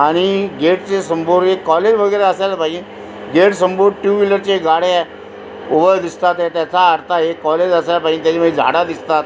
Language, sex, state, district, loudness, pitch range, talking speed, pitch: Marathi, male, Maharashtra, Aurangabad, -14 LUFS, 165-195 Hz, 160 wpm, 180 Hz